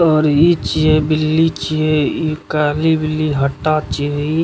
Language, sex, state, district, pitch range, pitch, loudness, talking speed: Maithili, male, Bihar, Begusarai, 150-155 Hz, 155 Hz, -16 LUFS, 135 wpm